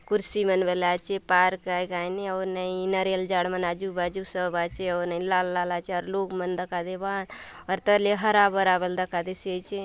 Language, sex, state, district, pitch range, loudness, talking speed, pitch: Halbi, female, Chhattisgarh, Bastar, 180-190 Hz, -26 LUFS, 200 wpm, 185 Hz